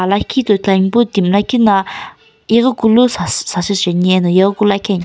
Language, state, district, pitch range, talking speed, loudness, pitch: Sumi, Nagaland, Kohima, 190-220 Hz, 155 wpm, -13 LUFS, 200 Hz